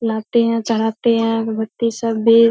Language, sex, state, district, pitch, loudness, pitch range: Hindi, female, Bihar, Purnia, 230 Hz, -17 LUFS, 225-230 Hz